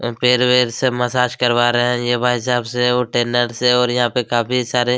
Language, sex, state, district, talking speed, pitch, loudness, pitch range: Hindi, male, Chhattisgarh, Kabirdham, 215 wpm, 125 Hz, -17 LUFS, 120-125 Hz